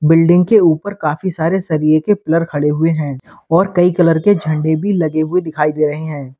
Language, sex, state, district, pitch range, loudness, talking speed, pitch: Hindi, male, Uttar Pradesh, Lalitpur, 155-180 Hz, -14 LUFS, 215 wpm, 160 Hz